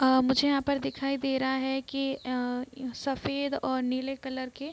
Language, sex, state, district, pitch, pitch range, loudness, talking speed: Hindi, female, Bihar, East Champaran, 265 Hz, 260-275 Hz, -30 LUFS, 180 wpm